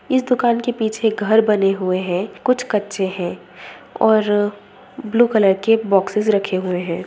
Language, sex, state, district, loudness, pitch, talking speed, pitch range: Hindi, female, Bihar, Sitamarhi, -18 LUFS, 210 Hz, 170 wpm, 190-225 Hz